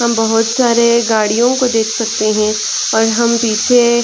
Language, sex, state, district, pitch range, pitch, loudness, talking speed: Hindi, female, Chhattisgarh, Raigarh, 220-235 Hz, 230 Hz, -13 LUFS, 165 wpm